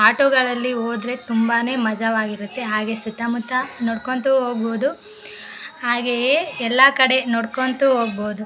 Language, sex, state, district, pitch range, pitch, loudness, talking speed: Kannada, female, Karnataka, Bellary, 230-260 Hz, 240 Hz, -19 LUFS, 115 wpm